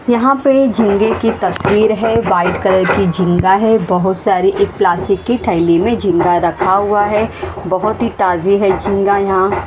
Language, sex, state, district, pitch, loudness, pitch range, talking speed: Hindi, female, Haryana, Rohtak, 200 Hz, -13 LUFS, 185-225 Hz, 180 wpm